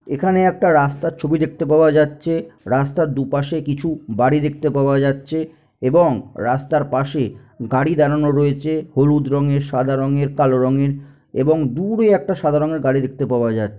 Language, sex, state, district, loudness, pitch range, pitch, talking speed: Bengali, male, West Bengal, North 24 Parganas, -18 LUFS, 135-155 Hz, 145 Hz, 150 wpm